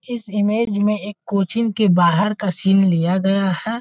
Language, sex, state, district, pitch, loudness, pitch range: Hindi, male, Bihar, Muzaffarpur, 205 Hz, -18 LUFS, 190-210 Hz